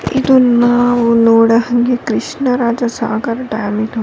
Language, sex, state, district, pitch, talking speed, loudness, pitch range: Kannada, female, Karnataka, Dharwad, 240 Hz, 150 wpm, -13 LUFS, 230-245 Hz